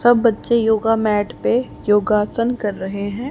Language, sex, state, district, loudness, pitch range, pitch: Hindi, female, Haryana, Charkhi Dadri, -18 LUFS, 205-235 Hz, 220 Hz